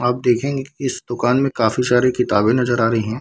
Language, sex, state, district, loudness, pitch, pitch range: Hindi, male, Bihar, Samastipur, -18 LUFS, 125 Hz, 115-125 Hz